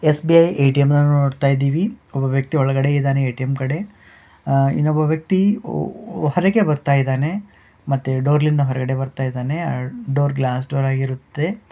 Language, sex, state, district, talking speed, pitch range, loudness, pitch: Kannada, male, Karnataka, Bellary, 140 wpm, 135-155 Hz, -19 LUFS, 140 Hz